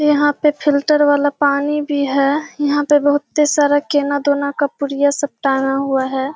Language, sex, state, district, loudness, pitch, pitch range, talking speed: Hindi, female, Bihar, Kishanganj, -16 LUFS, 290 Hz, 280-295 Hz, 180 wpm